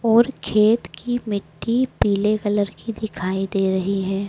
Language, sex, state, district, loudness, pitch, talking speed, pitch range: Hindi, female, Madhya Pradesh, Dhar, -21 LUFS, 205 Hz, 155 wpm, 195-225 Hz